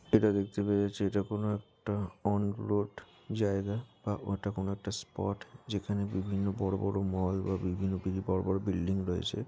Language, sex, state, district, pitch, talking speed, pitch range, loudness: Bengali, male, West Bengal, Jalpaiguri, 100 Hz, 160 wpm, 95-105 Hz, -33 LUFS